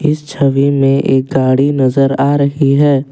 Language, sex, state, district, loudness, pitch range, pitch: Hindi, male, Assam, Kamrup Metropolitan, -12 LUFS, 135-140 Hz, 140 Hz